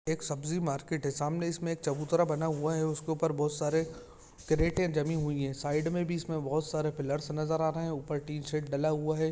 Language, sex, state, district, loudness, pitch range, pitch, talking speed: Hindi, male, Chhattisgarh, Kabirdham, -32 LUFS, 150-160 Hz, 155 Hz, 240 wpm